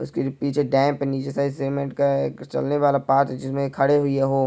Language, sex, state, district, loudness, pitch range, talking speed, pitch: Hindi, male, Maharashtra, Pune, -22 LUFS, 135-140 Hz, 215 wpm, 140 Hz